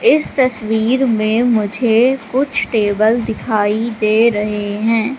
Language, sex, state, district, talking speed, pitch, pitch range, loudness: Hindi, female, Madhya Pradesh, Katni, 115 wpm, 225 Hz, 215-250 Hz, -15 LUFS